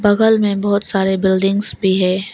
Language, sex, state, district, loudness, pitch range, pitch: Hindi, female, Arunachal Pradesh, Longding, -15 LUFS, 190-205 Hz, 195 Hz